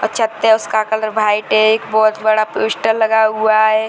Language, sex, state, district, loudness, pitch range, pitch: Hindi, female, Bihar, Purnia, -14 LUFS, 215-220 Hz, 220 Hz